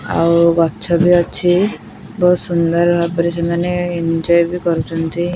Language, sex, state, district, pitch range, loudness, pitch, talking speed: Odia, female, Odisha, Khordha, 170-175 Hz, -15 LUFS, 170 Hz, 135 wpm